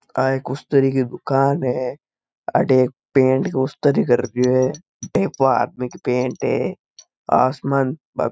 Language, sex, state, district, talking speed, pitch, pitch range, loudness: Marwari, male, Rajasthan, Nagaur, 130 wpm, 130 Hz, 125-135 Hz, -19 LUFS